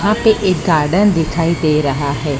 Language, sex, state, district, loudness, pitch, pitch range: Hindi, female, Maharashtra, Mumbai Suburban, -15 LUFS, 165 Hz, 150-200 Hz